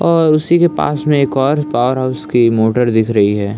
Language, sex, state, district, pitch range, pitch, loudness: Hindi, male, Uttarakhand, Tehri Garhwal, 115-150 Hz, 130 Hz, -13 LUFS